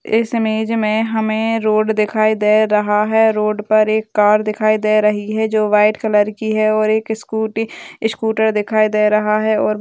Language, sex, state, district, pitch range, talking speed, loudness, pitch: Hindi, female, Bihar, Begusarai, 215-220 Hz, 195 wpm, -16 LUFS, 215 Hz